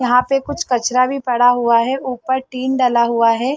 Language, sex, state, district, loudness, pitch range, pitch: Hindi, female, Chhattisgarh, Bastar, -16 LUFS, 240-260 Hz, 250 Hz